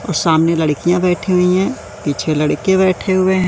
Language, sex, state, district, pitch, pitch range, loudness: Hindi, male, Madhya Pradesh, Katni, 180 Hz, 160-185 Hz, -15 LUFS